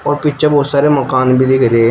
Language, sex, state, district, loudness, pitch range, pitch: Hindi, male, Uttar Pradesh, Shamli, -12 LUFS, 130-145 Hz, 140 Hz